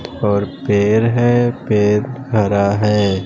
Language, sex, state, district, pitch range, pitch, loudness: Hindi, male, Bihar, West Champaran, 100-120 Hz, 105 Hz, -16 LUFS